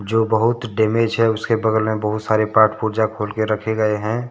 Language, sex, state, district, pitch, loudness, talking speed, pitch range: Hindi, male, Jharkhand, Deoghar, 110 Hz, -19 LUFS, 225 wpm, 110-115 Hz